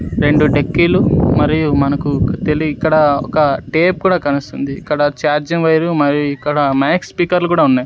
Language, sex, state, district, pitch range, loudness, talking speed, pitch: Telugu, male, Andhra Pradesh, Sri Satya Sai, 140-160 Hz, -14 LUFS, 145 wpm, 150 Hz